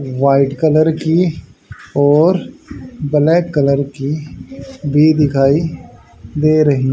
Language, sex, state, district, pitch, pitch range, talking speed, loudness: Hindi, male, Haryana, Rohtak, 145 Hz, 135-155 Hz, 95 wpm, -14 LUFS